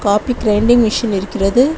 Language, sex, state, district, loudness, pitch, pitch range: Tamil, female, Tamil Nadu, Kanyakumari, -14 LUFS, 220 Hz, 205-240 Hz